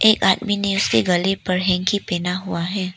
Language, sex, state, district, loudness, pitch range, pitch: Hindi, female, Arunachal Pradesh, Papum Pare, -19 LUFS, 180-200 Hz, 185 Hz